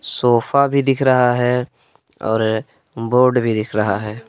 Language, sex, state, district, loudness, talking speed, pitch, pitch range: Hindi, male, Jharkhand, Palamu, -17 LUFS, 155 wpm, 120 Hz, 110-125 Hz